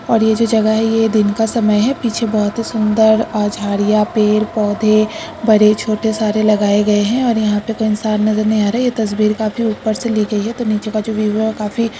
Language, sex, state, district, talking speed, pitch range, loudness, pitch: Hindi, female, Uttarakhand, Uttarkashi, 245 wpm, 210-225 Hz, -15 LUFS, 215 Hz